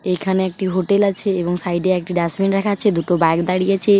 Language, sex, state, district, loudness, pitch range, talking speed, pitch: Bengali, female, West Bengal, Paschim Medinipur, -18 LUFS, 175-195 Hz, 225 wpm, 185 Hz